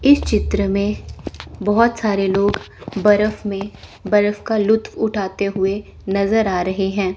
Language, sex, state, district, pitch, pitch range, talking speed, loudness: Hindi, female, Chandigarh, Chandigarh, 205 Hz, 195-215 Hz, 140 wpm, -19 LUFS